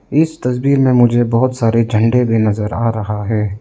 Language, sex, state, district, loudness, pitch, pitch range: Hindi, male, Arunachal Pradesh, Lower Dibang Valley, -14 LUFS, 115 Hz, 110-125 Hz